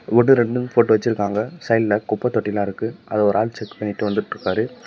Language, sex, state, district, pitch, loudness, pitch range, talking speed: Tamil, male, Tamil Nadu, Namakkal, 110 Hz, -20 LUFS, 105-120 Hz, 170 wpm